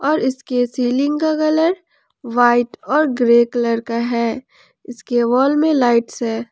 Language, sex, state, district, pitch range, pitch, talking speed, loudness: Hindi, male, Jharkhand, Ranchi, 235-290 Hz, 245 Hz, 145 wpm, -17 LUFS